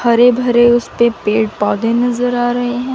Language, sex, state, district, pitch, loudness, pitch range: Hindi, female, Chandigarh, Chandigarh, 240 Hz, -14 LUFS, 230-245 Hz